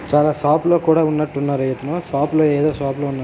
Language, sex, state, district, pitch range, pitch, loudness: Telugu, male, Telangana, Nalgonda, 140-155 Hz, 150 Hz, -18 LUFS